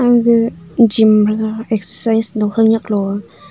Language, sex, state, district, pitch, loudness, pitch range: Wancho, female, Arunachal Pradesh, Longding, 220 Hz, -14 LUFS, 210-225 Hz